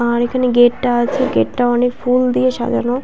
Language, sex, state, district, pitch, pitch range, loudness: Bengali, female, West Bengal, Paschim Medinipur, 245 Hz, 240-255 Hz, -15 LUFS